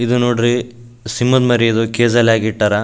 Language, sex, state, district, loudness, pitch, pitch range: Kannada, male, Karnataka, Raichur, -14 LUFS, 120 Hz, 115-120 Hz